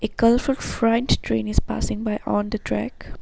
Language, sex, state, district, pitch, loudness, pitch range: English, female, Assam, Sonitpur, 220 Hz, -23 LUFS, 205-230 Hz